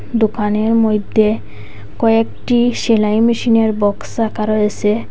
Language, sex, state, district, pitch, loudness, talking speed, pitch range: Bengali, female, Assam, Hailakandi, 215 Hz, -15 LUFS, 95 wpm, 210-225 Hz